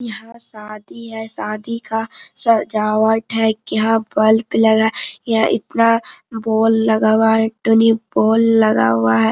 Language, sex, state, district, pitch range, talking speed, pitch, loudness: Hindi, female, Jharkhand, Sahebganj, 220-225 Hz, 135 wpm, 220 Hz, -16 LUFS